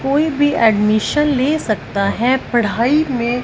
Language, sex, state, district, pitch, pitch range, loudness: Hindi, female, Punjab, Fazilka, 245 Hz, 215-290 Hz, -16 LUFS